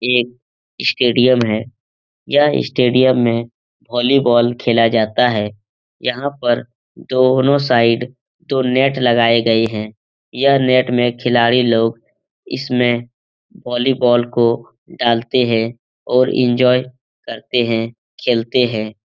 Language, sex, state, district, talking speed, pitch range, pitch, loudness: Hindi, male, Bihar, Supaul, 110 wpm, 115-125 Hz, 120 Hz, -16 LUFS